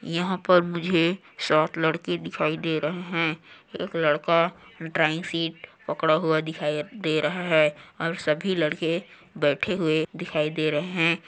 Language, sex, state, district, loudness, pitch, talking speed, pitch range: Hindi, male, Chhattisgarh, Kabirdham, -25 LUFS, 165 Hz, 150 wpm, 155-175 Hz